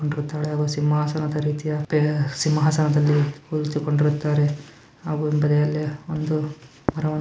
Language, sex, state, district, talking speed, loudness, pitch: Kannada, male, Karnataka, Bijapur, 60 wpm, -23 LUFS, 150 Hz